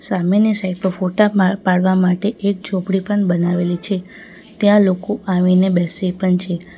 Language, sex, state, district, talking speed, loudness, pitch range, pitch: Gujarati, female, Gujarat, Valsad, 150 wpm, -17 LUFS, 180-200 Hz, 185 Hz